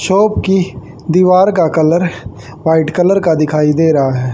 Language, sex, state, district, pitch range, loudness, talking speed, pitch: Hindi, female, Haryana, Charkhi Dadri, 145-180 Hz, -12 LUFS, 165 wpm, 160 Hz